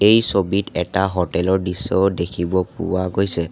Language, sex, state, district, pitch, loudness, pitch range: Assamese, male, Assam, Sonitpur, 95 Hz, -20 LUFS, 90-100 Hz